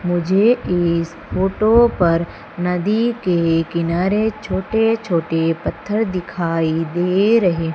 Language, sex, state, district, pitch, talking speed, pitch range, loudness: Hindi, female, Madhya Pradesh, Umaria, 180 Hz, 100 wpm, 170-215 Hz, -18 LUFS